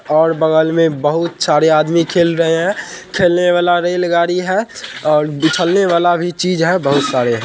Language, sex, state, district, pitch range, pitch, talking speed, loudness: Hindi, male, Bihar, Purnia, 155-175 Hz, 170 Hz, 195 wpm, -14 LUFS